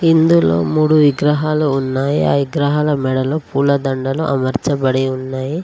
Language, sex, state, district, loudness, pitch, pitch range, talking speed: Telugu, female, Telangana, Mahabubabad, -16 LUFS, 140 Hz, 130-155 Hz, 115 wpm